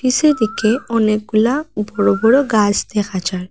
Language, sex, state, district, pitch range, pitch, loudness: Bengali, female, Assam, Hailakandi, 205-240 Hz, 215 Hz, -16 LUFS